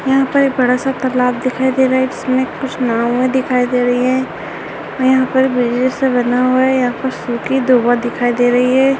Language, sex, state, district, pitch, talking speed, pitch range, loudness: Hindi, female, Chhattisgarh, Raigarh, 255 Hz, 215 wpm, 245-260 Hz, -15 LUFS